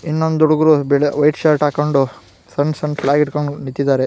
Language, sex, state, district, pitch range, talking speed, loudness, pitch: Kannada, female, Karnataka, Gulbarga, 140-155 Hz, 175 wpm, -16 LUFS, 150 Hz